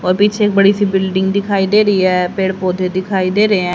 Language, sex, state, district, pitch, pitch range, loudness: Hindi, female, Haryana, Rohtak, 190 Hz, 185-205 Hz, -14 LUFS